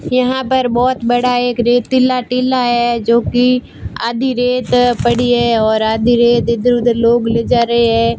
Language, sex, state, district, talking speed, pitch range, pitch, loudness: Hindi, female, Rajasthan, Barmer, 170 wpm, 235-250 Hz, 240 Hz, -13 LUFS